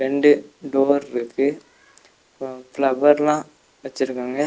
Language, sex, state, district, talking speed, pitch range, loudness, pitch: Tamil, male, Tamil Nadu, Nilgiris, 55 wpm, 130-145 Hz, -20 LUFS, 135 Hz